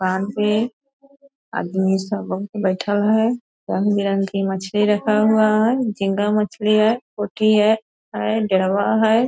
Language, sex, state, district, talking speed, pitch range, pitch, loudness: Hindi, female, Bihar, Purnia, 135 wpm, 195-220 Hz, 210 Hz, -19 LUFS